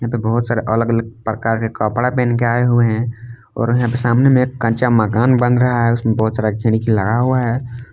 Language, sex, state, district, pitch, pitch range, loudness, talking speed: Hindi, male, Jharkhand, Palamu, 120 Hz, 115-120 Hz, -16 LUFS, 220 wpm